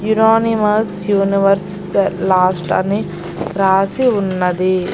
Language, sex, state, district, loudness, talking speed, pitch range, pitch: Telugu, female, Andhra Pradesh, Annamaya, -15 LUFS, 75 wpm, 185-210 Hz, 195 Hz